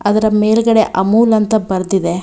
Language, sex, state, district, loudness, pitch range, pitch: Kannada, female, Karnataka, Bangalore, -13 LUFS, 190-220 Hz, 215 Hz